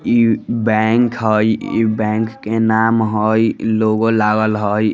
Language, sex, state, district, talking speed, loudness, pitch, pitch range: Bajjika, female, Bihar, Vaishali, 145 wpm, -16 LUFS, 110 Hz, 110-115 Hz